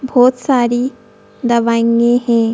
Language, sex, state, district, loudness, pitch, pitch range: Hindi, female, Madhya Pradesh, Bhopal, -14 LUFS, 240 Hz, 230-250 Hz